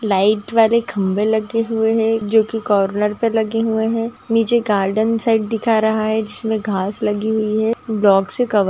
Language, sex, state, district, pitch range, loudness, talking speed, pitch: Hindi, female, Andhra Pradesh, Chittoor, 210-225 Hz, -17 LUFS, 195 wpm, 220 Hz